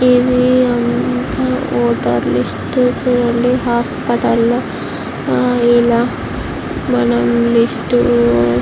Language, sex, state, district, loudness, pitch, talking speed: Telugu, female, Andhra Pradesh, Visakhapatnam, -15 LUFS, 240 Hz, 75 wpm